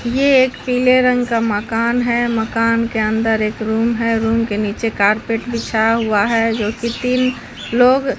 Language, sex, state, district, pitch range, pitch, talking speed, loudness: Hindi, female, Bihar, Katihar, 220-245 Hz, 230 Hz, 175 wpm, -16 LUFS